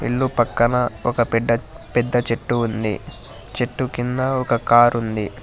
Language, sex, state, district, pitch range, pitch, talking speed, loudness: Telugu, male, Telangana, Hyderabad, 115-125 Hz, 120 Hz, 130 wpm, -20 LUFS